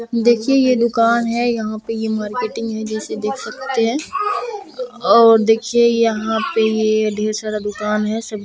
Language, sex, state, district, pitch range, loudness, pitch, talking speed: Maithili, female, Bihar, Purnia, 215-235 Hz, -17 LUFS, 225 Hz, 165 wpm